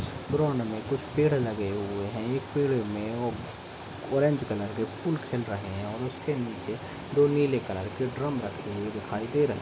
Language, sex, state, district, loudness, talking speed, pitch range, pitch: Hindi, male, Uttar Pradesh, Etah, -29 LUFS, 200 wpm, 105-140 Hz, 120 Hz